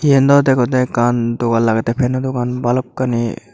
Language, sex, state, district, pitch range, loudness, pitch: Chakma, male, Tripura, Dhalai, 120-130 Hz, -16 LUFS, 125 Hz